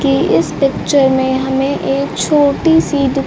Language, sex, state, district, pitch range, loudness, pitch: Hindi, female, Bihar, Kaimur, 265-285 Hz, -13 LUFS, 275 Hz